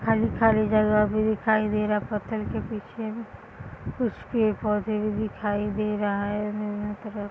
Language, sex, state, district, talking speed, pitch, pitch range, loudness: Hindi, female, Bihar, East Champaran, 170 wpm, 215 Hz, 210-220 Hz, -26 LUFS